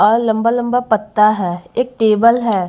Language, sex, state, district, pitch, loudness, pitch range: Hindi, female, Haryana, Charkhi Dadri, 220 Hz, -15 LUFS, 210-235 Hz